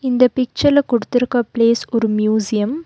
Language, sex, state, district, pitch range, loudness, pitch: Tamil, female, Tamil Nadu, Nilgiris, 220-255 Hz, -17 LUFS, 240 Hz